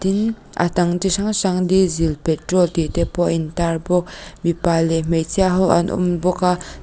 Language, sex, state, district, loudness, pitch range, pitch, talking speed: Mizo, female, Mizoram, Aizawl, -19 LUFS, 165-185 Hz, 175 Hz, 195 wpm